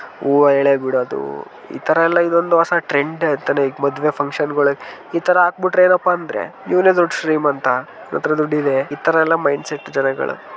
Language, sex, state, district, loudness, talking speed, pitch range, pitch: Kannada, male, Karnataka, Shimoga, -17 LUFS, 165 wpm, 140-170 Hz, 150 Hz